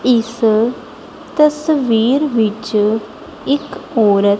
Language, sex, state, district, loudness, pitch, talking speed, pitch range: Punjabi, female, Punjab, Kapurthala, -15 LUFS, 235 Hz, 70 wpm, 215-295 Hz